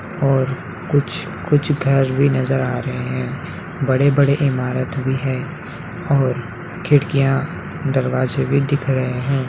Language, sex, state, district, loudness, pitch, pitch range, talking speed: Hindi, male, Bihar, Muzaffarpur, -19 LUFS, 135 Hz, 130-145 Hz, 125 wpm